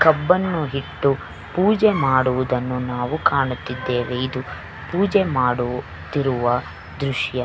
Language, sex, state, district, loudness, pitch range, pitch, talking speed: Kannada, female, Karnataka, Belgaum, -21 LUFS, 125-155 Hz, 130 Hz, 80 wpm